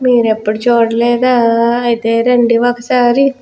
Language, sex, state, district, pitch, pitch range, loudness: Telugu, female, Andhra Pradesh, Guntur, 240 Hz, 230-245 Hz, -12 LUFS